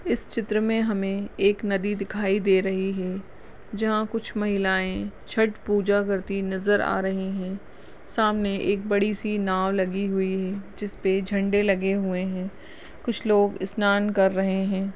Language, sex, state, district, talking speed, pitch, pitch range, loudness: Hindi, female, Uttarakhand, Uttarkashi, 155 wpm, 195 Hz, 190-205 Hz, -25 LUFS